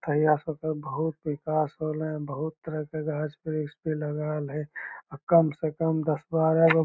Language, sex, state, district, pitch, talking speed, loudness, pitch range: Magahi, male, Bihar, Lakhisarai, 155 Hz, 195 wpm, -28 LUFS, 150-160 Hz